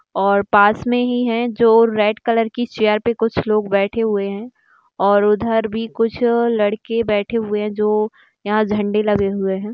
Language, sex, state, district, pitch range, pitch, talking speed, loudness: Hindi, female, Maharashtra, Nagpur, 205-230 Hz, 215 Hz, 185 wpm, -17 LUFS